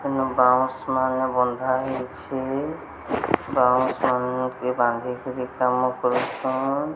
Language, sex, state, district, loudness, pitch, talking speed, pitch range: Odia, female, Odisha, Sambalpur, -23 LUFS, 130 Hz, 70 wpm, 125-130 Hz